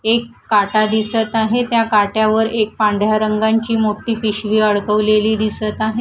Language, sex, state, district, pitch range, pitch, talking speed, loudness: Marathi, female, Maharashtra, Gondia, 215-225 Hz, 215 Hz, 140 wpm, -16 LUFS